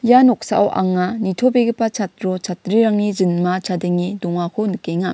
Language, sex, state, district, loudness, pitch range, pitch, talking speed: Garo, female, Meghalaya, West Garo Hills, -18 LUFS, 180-220 Hz, 195 Hz, 115 wpm